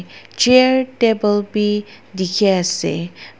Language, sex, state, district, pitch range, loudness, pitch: Nagamese, female, Nagaland, Dimapur, 180-230 Hz, -16 LUFS, 205 Hz